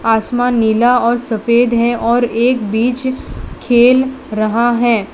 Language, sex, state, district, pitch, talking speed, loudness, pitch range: Hindi, female, Gujarat, Valsad, 240 Hz, 130 wpm, -14 LUFS, 230-245 Hz